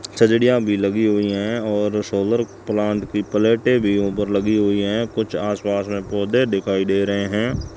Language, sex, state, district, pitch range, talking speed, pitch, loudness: Hindi, male, Rajasthan, Bikaner, 100-110 Hz, 175 wpm, 105 Hz, -20 LUFS